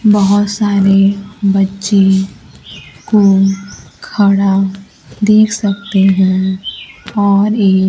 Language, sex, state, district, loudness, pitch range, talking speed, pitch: Hindi, female, Bihar, Kaimur, -12 LUFS, 195-205 Hz, 75 wpm, 195 Hz